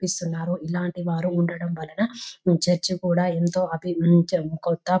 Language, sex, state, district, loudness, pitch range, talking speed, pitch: Telugu, female, Telangana, Nalgonda, -24 LUFS, 170-180 Hz, 130 wpm, 175 Hz